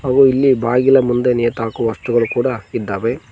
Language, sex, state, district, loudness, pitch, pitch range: Kannada, male, Karnataka, Koppal, -16 LUFS, 125 Hz, 120-130 Hz